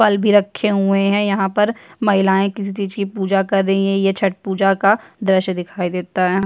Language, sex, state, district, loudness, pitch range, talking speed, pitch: Hindi, female, Chhattisgarh, Jashpur, -17 LUFS, 195-205 Hz, 215 wpm, 195 Hz